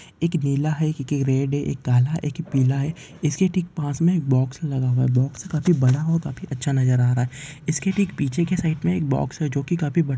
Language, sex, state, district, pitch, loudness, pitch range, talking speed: Hindi, male, Maharashtra, Chandrapur, 150 Hz, -22 LUFS, 135-165 Hz, 240 wpm